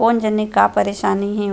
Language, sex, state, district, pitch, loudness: Chhattisgarhi, female, Chhattisgarh, Rajnandgaon, 205 Hz, -17 LUFS